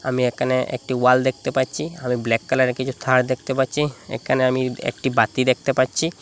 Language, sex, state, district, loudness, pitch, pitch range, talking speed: Bengali, male, Assam, Hailakandi, -21 LUFS, 130 Hz, 125-130 Hz, 185 wpm